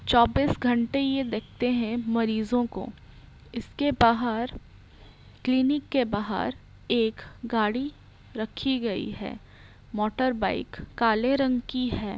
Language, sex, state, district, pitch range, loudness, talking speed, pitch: Hindi, female, Bihar, Muzaffarpur, 225-255 Hz, -27 LUFS, 115 wpm, 235 Hz